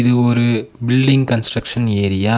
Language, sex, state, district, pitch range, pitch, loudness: Tamil, male, Tamil Nadu, Nilgiris, 110-120 Hz, 120 Hz, -16 LUFS